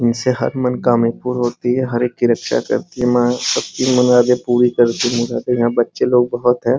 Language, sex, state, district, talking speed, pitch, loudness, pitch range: Hindi, male, Bihar, Muzaffarpur, 220 wpm, 125 Hz, -16 LUFS, 120-125 Hz